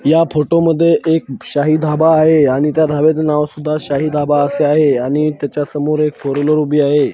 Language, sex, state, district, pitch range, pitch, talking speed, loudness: Marathi, male, Maharashtra, Washim, 145-155 Hz, 150 Hz, 200 wpm, -14 LUFS